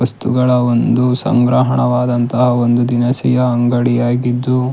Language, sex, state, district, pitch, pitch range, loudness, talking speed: Kannada, male, Karnataka, Shimoga, 125 Hz, 120-125 Hz, -14 LUFS, 75 wpm